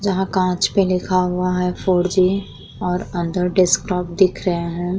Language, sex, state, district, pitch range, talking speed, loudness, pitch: Hindi, female, Uttar Pradesh, Muzaffarnagar, 180-185 Hz, 170 wpm, -19 LUFS, 180 Hz